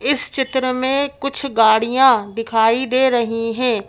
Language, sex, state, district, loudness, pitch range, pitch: Hindi, female, Madhya Pradesh, Bhopal, -17 LUFS, 230-265 Hz, 255 Hz